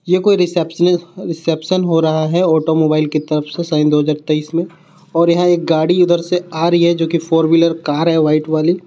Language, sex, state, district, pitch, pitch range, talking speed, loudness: Hindi, male, Jharkhand, Garhwa, 165 Hz, 155-175 Hz, 225 wpm, -15 LUFS